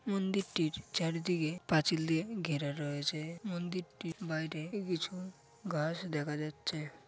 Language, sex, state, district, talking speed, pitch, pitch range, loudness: Bengali, male, West Bengal, Paschim Medinipur, 110 wpm, 165 Hz, 155-180 Hz, -36 LUFS